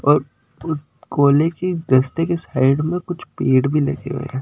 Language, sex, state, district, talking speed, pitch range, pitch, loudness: Hindi, male, Delhi, New Delhi, 175 wpm, 135-165 Hz, 145 Hz, -19 LUFS